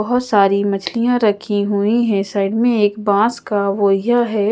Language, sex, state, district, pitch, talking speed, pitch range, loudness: Hindi, female, Chandigarh, Chandigarh, 210 Hz, 175 wpm, 200-235 Hz, -16 LUFS